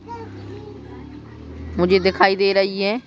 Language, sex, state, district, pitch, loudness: Hindi, male, Madhya Pradesh, Bhopal, 190 Hz, -18 LUFS